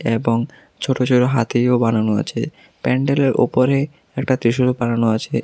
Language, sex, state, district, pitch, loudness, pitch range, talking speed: Bengali, male, Tripura, South Tripura, 125 Hz, -18 LUFS, 115-130 Hz, 155 wpm